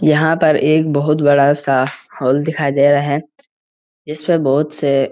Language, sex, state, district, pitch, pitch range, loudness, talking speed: Hindi, male, Uttarakhand, Uttarkashi, 145 Hz, 140-155 Hz, -15 LUFS, 190 wpm